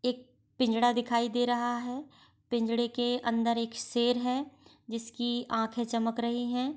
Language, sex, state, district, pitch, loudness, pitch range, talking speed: Hindi, female, Bihar, Gopalganj, 240 Hz, -31 LUFS, 235-245 Hz, 150 wpm